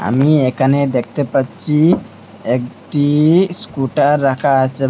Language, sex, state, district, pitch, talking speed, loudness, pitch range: Bengali, male, Assam, Hailakandi, 140 Hz, 100 wpm, -15 LUFS, 130-150 Hz